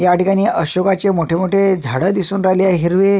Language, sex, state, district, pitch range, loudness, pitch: Marathi, male, Maharashtra, Sindhudurg, 180-195 Hz, -15 LUFS, 190 Hz